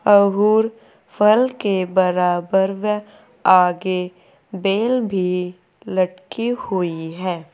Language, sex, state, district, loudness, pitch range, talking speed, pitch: Hindi, female, Uttar Pradesh, Saharanpur, -19 LUFS, 180-210 Hz, 90 wpm, 190 Hz